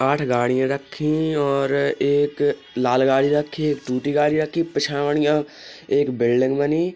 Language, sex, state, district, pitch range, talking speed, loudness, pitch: Bundeli, male, Uttar Pradesh, Hamirpur, 135-150 Hz, 130 wpm, -21 LUFS, 145 Hz